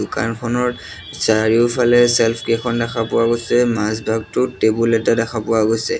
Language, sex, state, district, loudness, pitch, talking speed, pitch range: Assamese, male, Assam, Sonitpur, -17 LUFS, 115 Hz, 140 wpm, 110-120 Hz